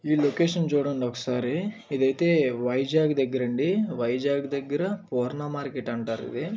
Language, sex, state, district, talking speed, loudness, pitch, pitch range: Telugu, male, Andhra Pradesh, Visakhapatnam, 135 wpm, -26 LUFS, 140 Hz, 125-160 Hz